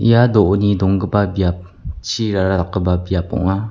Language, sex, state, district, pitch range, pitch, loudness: Garo, male, Meghalaya, West Garo Hills, 90-105 Hz, 95 Hz, -17 LUFS